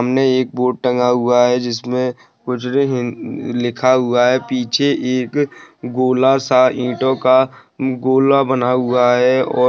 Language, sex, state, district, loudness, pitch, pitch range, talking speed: Hindi, male, West Bengal, Dakshin Dinajpur, -16 LUFS, 125 Hz, 125-130 Hz, 130 wpm